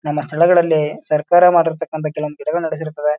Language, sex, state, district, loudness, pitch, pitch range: Kannada, male, Karnataka, Bijapur, -16 LUFS, 155 Hz, 150-165 Hz